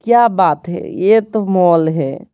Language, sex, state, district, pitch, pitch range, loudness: Hindi, female, Bihar, Patna, 190 Hz, 170-220 Hz, -14 LUFS